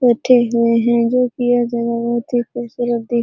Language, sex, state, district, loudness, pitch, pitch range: Hindi, female, Bihar, Araria, -16 LUFS, 240 Hz, 235-245 Hz